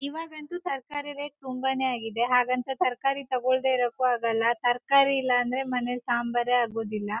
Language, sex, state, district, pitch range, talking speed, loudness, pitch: Kannada, female, Karnataka, Shimoga, 240-275 Hz, 150 wpm, -27 LUFS, 255 Hz